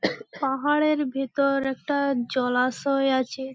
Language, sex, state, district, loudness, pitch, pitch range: Bengali, female, West Bengal, Paschim Medinipur, -24 LUFS, 270 Hz, 260-280 Hz